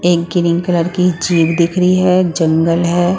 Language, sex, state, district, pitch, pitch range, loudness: Hindi, female, Bihar, West Champaran, 175 Hz, 170-180 Hz, -13 LUFS